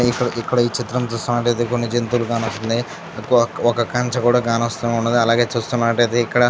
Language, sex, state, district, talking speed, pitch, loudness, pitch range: Telugu, male, Andhra Pradesh, Chittoor, 140 wpm, 120 Hz, -19 LUFS, 115-120 Hz